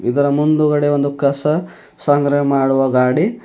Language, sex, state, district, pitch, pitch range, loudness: Kannada, male, Karnataka, Bidar, 145 Hz, 140-150 Hz, -16 LUFS